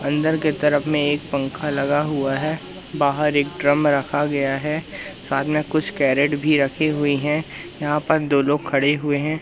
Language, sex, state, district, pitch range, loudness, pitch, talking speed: Hindi, male, Madhya Pradesh, Katni, 140-150 Hz, -20 LUFS, 145 Hz, 190 wpm